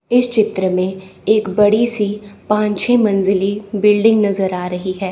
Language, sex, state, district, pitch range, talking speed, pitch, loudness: Hindi, female, Chandigarh, Chandigarh, 190-215 Hz, 165 wpm, 205 Hz, -16 LUFS